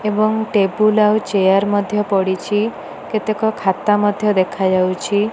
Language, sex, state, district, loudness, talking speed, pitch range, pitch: Odia, female, Odisha, Nuapada, -17 LUFS, 115 wpm, 195-215 Hz, 205 Hz